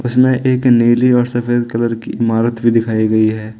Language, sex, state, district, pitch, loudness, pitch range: Hindi, male, Arunachal Pradesh, Lower Dibang Valley, 120 Hz, -14 LUFS, 115-125 Hz